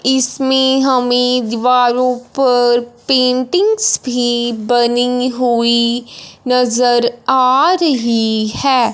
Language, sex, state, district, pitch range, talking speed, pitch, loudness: Hindi, male, Punjab, Fazilka, 240-260 Hz, 75 wpm, 250 Hz, -13 LUFS